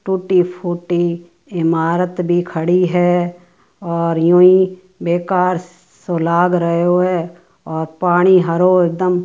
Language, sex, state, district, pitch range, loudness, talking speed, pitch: Marwari, female, Rajasthan, Churu, 170-180 Hz, -15 LUFS, 125 wpm, 175 Hz